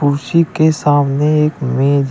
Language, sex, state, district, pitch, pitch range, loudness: Hindi, male, Uttar Pradesh, Shamli, 145 Hz, 140-155 Hz, -14 LUFS